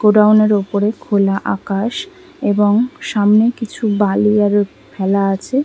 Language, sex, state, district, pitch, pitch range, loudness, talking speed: Bengali, female, West Bengal, Kolkata, 210 Hz, 200-230 Hz, -15 LUFS, 115 wpm